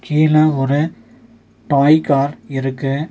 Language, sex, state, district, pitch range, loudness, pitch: Tamil, male, Tamil Nadu, Nilgiris, 135-155 Hz, -16 LUFS, 145 Hz